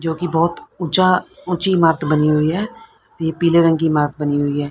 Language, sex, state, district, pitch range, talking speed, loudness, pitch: Hindi, female, Haryana, Rohtak, 150-180 Hz, 215 wpm, -17 LUFS, 165 Hz